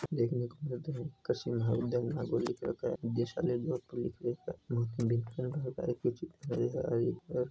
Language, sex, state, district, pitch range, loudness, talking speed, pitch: Hindi, female, Rajasthan, Nagaur, 120-130 Hz, -35 LUFS, 135 wpm, 125 Hz